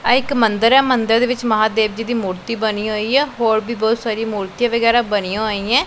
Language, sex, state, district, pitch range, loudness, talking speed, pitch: Punjabi, female, Punjab, Pathankot, 215-240 Hz, -17 LUFS, 235 wpm, 225 Hz